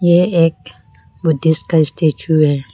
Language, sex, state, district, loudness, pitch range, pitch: Hindi, female, Arunachal Pradesh, Lower Dibang Valley, -15 LUFS, 145-165 Hz, 160 Hz